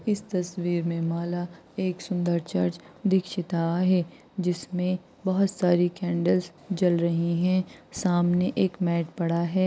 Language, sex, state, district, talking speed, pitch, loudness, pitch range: Hindi, female, Maharashtra, Aurangabad, 130 wpm, 180 Hz, -26 LUFS, 170-185 Hz